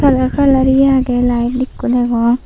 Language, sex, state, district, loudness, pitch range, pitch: Chakma, female, Tripura, Unakoti, -13 LUFS, 245-265 Hz, 255 Hz